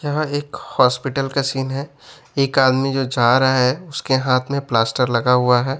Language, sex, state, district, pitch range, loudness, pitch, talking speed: Hindi, male, Bihar, West Champaran, 125-140 Hz, -18 LUFS, 135 Hz, 195 wpm